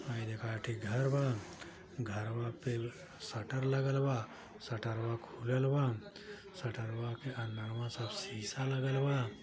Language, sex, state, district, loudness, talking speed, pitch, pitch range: Hindi, male, Uttar Pradesh, Gorakhpur, -38 LUFS, 120 wpm, 120 Hz, 115-135 Hz